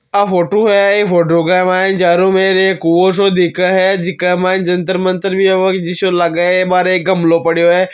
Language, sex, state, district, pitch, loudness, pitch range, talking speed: Marwari, male, Rajasthan, Churu, 185 Hz, -12 LUFS, 175-190 Hz, 205 wpm